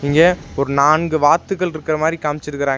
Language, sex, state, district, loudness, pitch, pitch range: Tamil, male, Tamil Nadu, Nilgiris, -17 LUFS, 155 Hz, 145-165 Hz